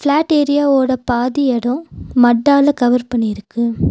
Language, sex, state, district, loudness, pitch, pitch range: Tamil, female, Tamil Nadu, Nilgiris, -15 LUFS, 255 Hz, 240-285 Hz